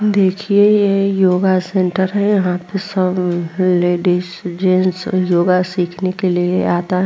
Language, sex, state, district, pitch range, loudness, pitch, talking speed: Hindi, female, Uttar Pradesh, Muzaffarnagar, 180-195 Hz, -16 LUFS, 185 Hz, 135 wpm